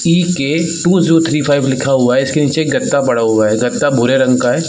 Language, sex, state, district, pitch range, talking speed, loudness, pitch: Hindi, male, Jharkhand, Sahebganj, 125-165 Hz, 255 wpm, -13 LUFS, 145 Hz